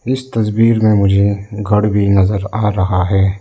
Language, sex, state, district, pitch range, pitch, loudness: Hindi, male, Arunachal Pradesh, Lower Dibang Valley, 100-110 Hz, 105 Hz, -14 LUFS